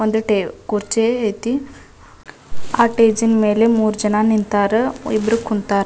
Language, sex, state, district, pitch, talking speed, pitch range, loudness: Kannada, female, Karnataka, Dharwad, 220 Hz, 135 wpm, 210-230 Hz, -17 LUFS